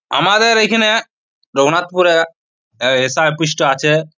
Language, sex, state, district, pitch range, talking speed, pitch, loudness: Bengali, male, West Bengal, Purulia, 150-215 Hz, 115 wpm, 165 Hz, -14 LUFS